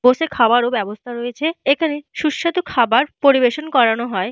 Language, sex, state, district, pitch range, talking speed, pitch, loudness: Bengali, female, Jharkhand, Jamtara, 240-305 Hz, 140 wpm, 250 Hz, -17 LUFS